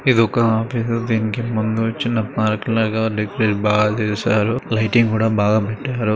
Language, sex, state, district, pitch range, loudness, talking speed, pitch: Telugu, male, Andhra Pradesh, Srikakulam, 110-115 Hz, -19 LUFS, 135 wpm, 110 Hz